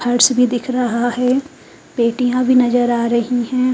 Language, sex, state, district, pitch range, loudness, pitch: Hindi, female, Haryana, Charkhi Dadri, 240-255 Hz, -16 LUFS, 245 Hz